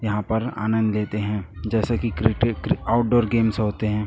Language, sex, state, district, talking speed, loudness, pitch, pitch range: Hindi, male, Chhattisgarh, Raipur, 190 wpm, -23 LUFS, 110 Hz, 105-115 Hz